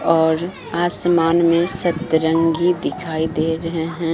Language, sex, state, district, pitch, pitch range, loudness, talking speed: Hindi, female, Bihar, Katihar, 165 Hz, 160-175 Hz, -18 LUFS, 115 wpm